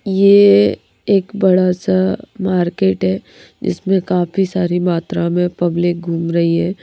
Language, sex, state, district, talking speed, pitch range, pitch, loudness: Hindi, female, Madhya Pradesh, Bhopal, 130 wpm, 175-190 Hz, 180 Hz, -15 LUFS